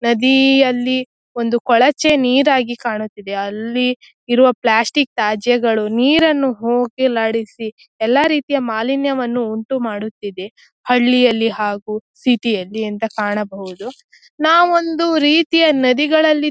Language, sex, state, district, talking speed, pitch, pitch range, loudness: Kannada, female, Karnataka, Shimoga, 100 wpm, 245 Hz, 220-275 Hz, -16 LUFS